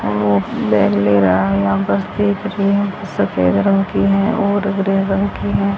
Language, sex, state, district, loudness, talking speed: Hindi, female, Haryana, Rohtak, -16 LUFS, 155 wpm